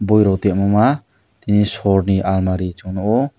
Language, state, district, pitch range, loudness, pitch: Kokborok, Tripura, West Tripura, 95-105 Hz, -17 LUFS, 100 Hz